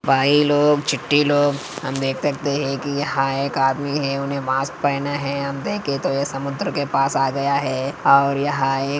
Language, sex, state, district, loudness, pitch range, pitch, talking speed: Hindi, male, Maharashtra, Aurangabad, -20 LUFS, 135-145 Hz, 140 Hz, 205 wpm